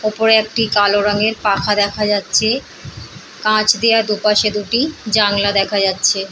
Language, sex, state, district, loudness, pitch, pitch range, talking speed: Bengali, female, West Bengal, Purulia, -15 LUFS, 210 Hz, 205-220 Hz, 140 wpm